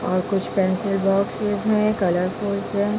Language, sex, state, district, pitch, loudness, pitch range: Hindi, female, Bihar, Araria, 200 Hz, -22 LUFS, 190-210 Hz